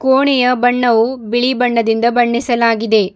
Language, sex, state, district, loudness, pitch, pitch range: Kannada, female, Karnataka, Bidar, -14 LUFS, 240 Hz, 230-250 Hz